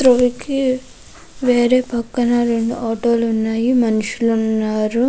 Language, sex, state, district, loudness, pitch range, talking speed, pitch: Telugu, female, Andhra Pradesh, Krishna, -17 LUFS, 225-250 Hz, 155 wpm, 235 Hz